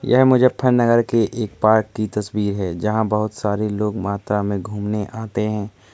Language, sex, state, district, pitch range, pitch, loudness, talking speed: Hindi, male, Uttar Pradesh, Muzaffarnagar, 105-110 Hz, 105 Hz, -20 LUFS, 170 wpm